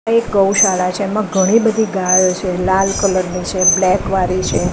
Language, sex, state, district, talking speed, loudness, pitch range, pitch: Gujarati, female, Gujarat, Gandhinagar, 215 wpm, -14 LUFS, 185-200 Hz, 190 Hz